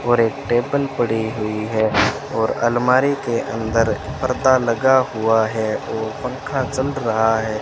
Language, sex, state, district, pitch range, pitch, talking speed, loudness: Hindi, male, Rajasthan, Bikaner, 110-130 Hz, 115 Hz, 150 wpm, -19 LUFS